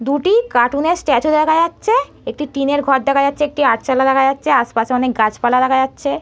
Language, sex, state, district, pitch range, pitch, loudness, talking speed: Bengali, female, West Bengal, North 24 Parganas, 260-300 Hz, 275 Hz, -15 LUFS, 205 wpm